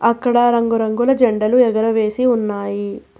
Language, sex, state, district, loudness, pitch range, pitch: Telugu, female, Telangana, Hyderabad, -16 LUFS, 215-245 Hz, 230 Hz